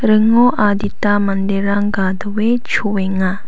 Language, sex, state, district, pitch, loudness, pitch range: Garo, female, Meghalaya, South Garo Hills, 205 Hz, -16 LUFS, 195-215 Hz